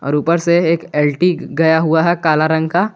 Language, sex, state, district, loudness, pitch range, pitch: Hindi, male, Jharkhand, Garhwa, -15 LUFS, 155-170 Hz, 160 Hz